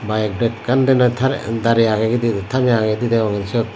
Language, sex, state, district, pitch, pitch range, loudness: Chakma, male, Tripura, Dhalai, 115 Hz, 110-125 Hz, -17 LUFS